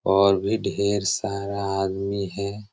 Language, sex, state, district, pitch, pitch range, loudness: Hindi, male, Jharkhand, Sahebganj, 100 Hz, 95-100 Hz, -24 LUFS